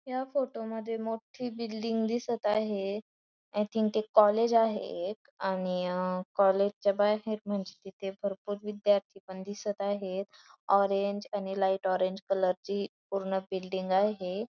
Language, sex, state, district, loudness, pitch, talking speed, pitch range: Marathi, female, Maharashtra, Dhule, -31 LUFS, 205 Hz, 135 wpm, 195-215 Hz